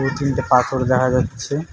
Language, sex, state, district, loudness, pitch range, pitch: Bengali, male, West Bengal, Alipurduar, -19 LUFS, 125-135 Hz, 130 Hz